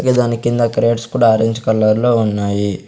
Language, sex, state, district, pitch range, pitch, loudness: Telugu, male, Andhra Pradesh, Sri Satya Sai, 110-120 Hz, 115 Hz, -15 LUFS